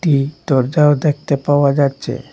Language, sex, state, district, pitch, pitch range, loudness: Bengali, male, Assam, Hailakandi, 145 Hz, 140-150 Hz, -15 LUFS